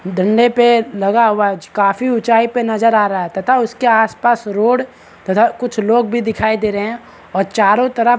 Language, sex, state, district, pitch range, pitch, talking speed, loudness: Hindi, male, Chhattisgarh, Balrampur, 205-240 Hz, 225 Hz, 205 wpm, -14 LUFS